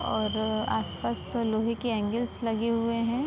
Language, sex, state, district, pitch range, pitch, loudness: Hindi, female, Uttar Pradesh, Budaun, 215-230 Hz, 225 Hz, -29 LUFS